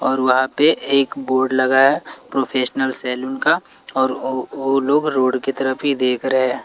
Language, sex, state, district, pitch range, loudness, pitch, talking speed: Hindi, male, Bihar, Patna, 130-135 Hz, -18 LUFS, 130 Hz, 180 wpm